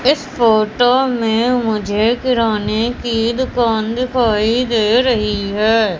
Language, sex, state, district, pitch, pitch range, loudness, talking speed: Hindi, female, Madhya Pradesh, Katni, 230 Hz, 215-245 Hz, -15 LUFS, 110 wpm